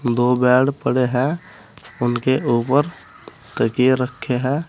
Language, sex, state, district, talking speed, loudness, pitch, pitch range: Hindi, male, Uttar Pradesh, Saharanpur, 115 wpm, -19 LUFS, 125 Hz, 125-135 Hz